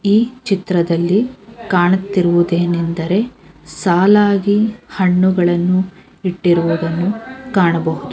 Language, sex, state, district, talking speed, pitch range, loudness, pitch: Kannada, female, Karnataka, Dharwad, 50 wpm, 170-205 Hz, -15 LUFS, 185 Hz